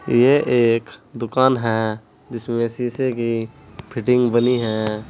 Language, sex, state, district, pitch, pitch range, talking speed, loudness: Hindi, male, Uttar Pradesh, Saharanpur, 120 Hz, 115-125 Hz, 120 wpm, -19 LUFS